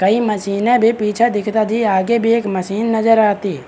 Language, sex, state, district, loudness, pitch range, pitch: Hindi, male, Bihar, Begusarai, -15 LUFS, 200-225 Hz, 215 Hz